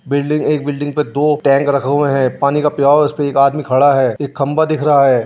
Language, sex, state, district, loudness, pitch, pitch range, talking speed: Hindi, male, Uttar Pradesh, Jyotiba Phule Nagar, -14 LUFS, 145 Hz, 140-150 Hz, 250 wpm